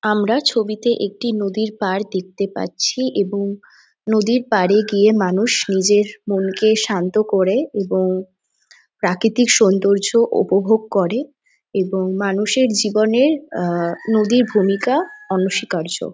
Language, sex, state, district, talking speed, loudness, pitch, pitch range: Bengali, female, West Bengal, Jhargram, 110 wpm, -18 LUFS, 210 Hz, 195-225 Hz